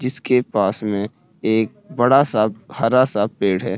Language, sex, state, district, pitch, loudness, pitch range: Hindi, male, Uttarakhand, Tehri Garhwal, 110 Hz, -19 LUFS, 105-125 Hz